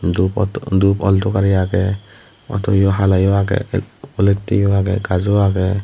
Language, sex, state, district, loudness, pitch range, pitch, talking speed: Chakma, female, Tripura, West Tripura, -16 LUFS, 95-105 Hz, 100 Hz, 185 wpm